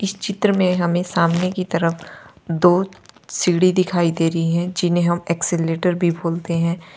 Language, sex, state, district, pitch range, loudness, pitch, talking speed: Hindi, female, Uttar Pradesh, Lalitpur, 170-185 Hz, -19 LUFS, 175 Hz, 165 wpm